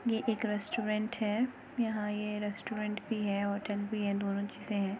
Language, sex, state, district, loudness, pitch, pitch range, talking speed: Hindi, female, Uttar Pradesh, Muzaffarnagar, -34 LUFS, 210 Hz, 205-220 Hz, 180 wpm